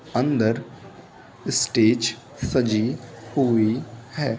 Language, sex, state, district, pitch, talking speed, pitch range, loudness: Hindi, male, Uttar Pradesh, Muzaffarnagar, 120 Hz, 70 wpm, 115-130 Hz, -22 LUFS